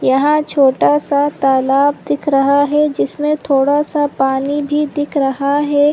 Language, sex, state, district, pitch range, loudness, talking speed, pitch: Hindi, female, Chhattisgarh, Rajnandgaon, 275-295 Hz, -14 LUFS, 160 wpm, 290 Hz